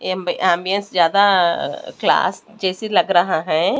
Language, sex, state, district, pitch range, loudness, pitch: Hindi, male, Delhi, New Delhi, 175-200 Hz, -18 LUFS, 185 Hz